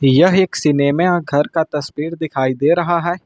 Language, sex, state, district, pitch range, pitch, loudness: Hindi, male, Uttar Pradesh, Lucknow, 145-175 Hz, 160 Hz, -16 LUFS